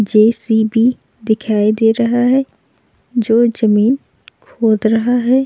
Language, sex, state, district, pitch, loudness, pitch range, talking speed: Hindi, female, Uttar Pradesh, Jalaun, 225 Hz, -14 LUFS, 220-240 Hz, 110 wpm